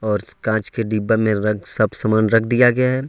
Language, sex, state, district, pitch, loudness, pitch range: Hindi, male, Jharkhand, Ranchi, 110 Hz, -18 LUFS, 105-120 Hz